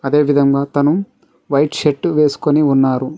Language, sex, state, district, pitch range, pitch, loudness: Telugu, male, Telangana, Mahabubabad, 140-150 Hz, 145 Hz, -15 LUFS